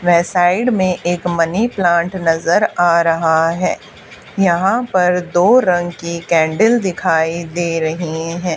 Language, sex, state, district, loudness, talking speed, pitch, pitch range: Hindi, female, Haryana, Charkhi Dadri, -15 LUFS, 140 wpm, 175 Hz, 170-185 Hz